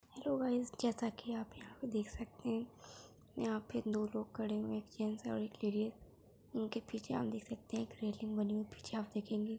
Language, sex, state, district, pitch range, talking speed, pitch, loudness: Hindi, female, Bihar, Araria, 210-230 Hz, 225 wpm, 215 Hz, -41 LUFS